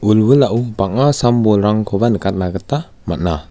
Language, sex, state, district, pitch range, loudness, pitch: Garo, male, Meghalaya, West Garo Hills, 95-120 Hz, -15 LUFS, 105 Hz